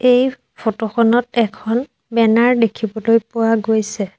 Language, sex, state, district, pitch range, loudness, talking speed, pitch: Assamese, female, Assam, Sonitpur, 220-240 Hz, -17 LUFS, 115 wpm, 230 Hz